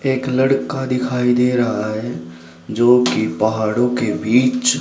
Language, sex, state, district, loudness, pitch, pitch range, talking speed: Hindi, male, Haryana, Rohtak, -17 LUFS, 125 Hz, 110-125 Hz, 125 wpm